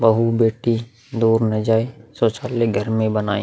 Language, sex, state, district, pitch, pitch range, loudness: Hindi, male, Uttar Pradesh, Muzaffarnagar, 115 Hz, 110-115 Hz, -19 LUFS